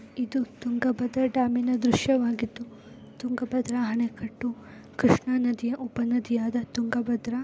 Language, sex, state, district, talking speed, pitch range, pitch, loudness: Kannada, female, Karnataka, Bellary, 105 wpm, 235-250 Hz, 245 Hz, -27 LUFS